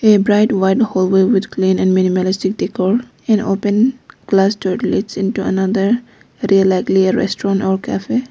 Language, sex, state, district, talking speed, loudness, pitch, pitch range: English, female, Arunachal Pradesh, Lower Dibang Valley, 165 wpm, -15 LUFS, 195 Hz, 190-210 Hz